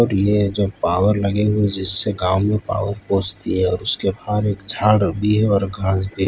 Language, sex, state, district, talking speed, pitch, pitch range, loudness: Hindi, male, Gujarat, Valsad, 230 wpm, 100 Hz, 95-105 Hz, -18 LUFS